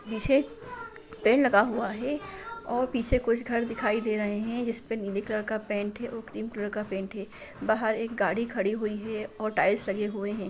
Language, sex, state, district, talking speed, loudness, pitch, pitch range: Hindi, female, Bihar, Sitamarhi, 205 wpm, -29 LUFS, 220 Hz, 210-240 Hz